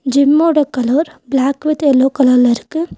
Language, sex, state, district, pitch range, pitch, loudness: Tamil, female, Tamil Nadu, Nilgiris, 260-305 Hz, 280 Hz, -13 LUFS